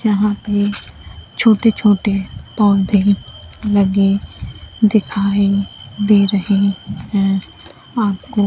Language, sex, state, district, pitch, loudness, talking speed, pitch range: Hindi, female, Bihar, Kaimur, 200 Hz, -16 LUFS, 70 wpm, 200-210 Hz